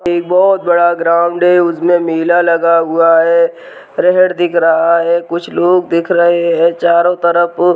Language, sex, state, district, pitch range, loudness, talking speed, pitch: Hindi, female, Uttarakhand, Tehri Garhwal, 170-175 Hz, -11 LUFS, 170 wpm, 170 Hz